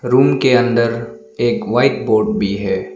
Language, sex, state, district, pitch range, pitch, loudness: Hindi, male, Arunachal Pradesh, Lower Dibang Valley, 100-125 Hz, 115 Hz, -15 LUFS